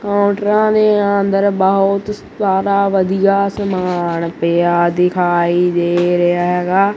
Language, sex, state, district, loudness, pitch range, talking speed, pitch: Punjabi, female, Punjab, Kapurthala, -14 LUFS, 175-200 Hz, 105 wpm, 190 Hz